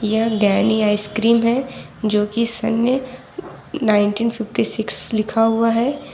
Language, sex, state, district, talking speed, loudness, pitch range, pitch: Hindi, female, Jharkhand, Ranchi, 125 wpm, -19 LUFS, 215-230 Hz, 225 Hz